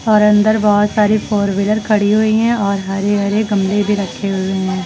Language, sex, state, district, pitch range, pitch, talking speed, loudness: Hindi, female, Uttar Pradesh, Lucknow, 200-215 Hz, 205 Hz, 195 wpm, -15 LUFS